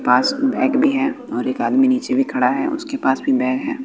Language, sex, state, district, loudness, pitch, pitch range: Hindi, male, Bihar, West Champaran, -18 LUFS, 270 Hz, 260-285 Hz